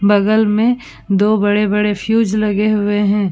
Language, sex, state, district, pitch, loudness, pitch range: Hindi, female, Uttar Pradesh, Budaun, 210 Hz, -15 LUFS, 205-215 Hz